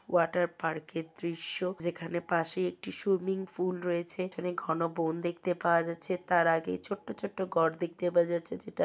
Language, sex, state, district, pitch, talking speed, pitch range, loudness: Bengali, female, West Bengal, Kolkata, 175 Hz, 170 wpm, 165-180 Hz, -32 LUFS